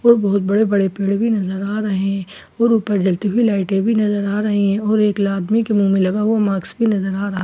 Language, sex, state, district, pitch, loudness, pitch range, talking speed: Hindi, female, Bihar, Katihar, 205 Hz, -17 LUFS, 195-215 Hz, 285 wpm